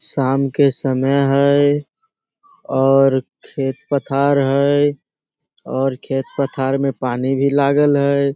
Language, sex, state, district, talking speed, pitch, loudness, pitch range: Maithili, male, Bihar, Samastipur, 100 wpm, 140 Hz, -17 LUFS, 135-145 Hz